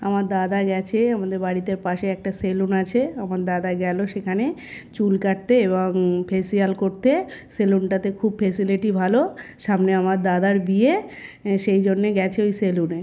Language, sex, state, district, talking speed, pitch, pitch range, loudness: Bengali, male, West Bengal, North 24 Parganas, 150 wpm, 195 Hz, 190-205 Hz, -21 LUFS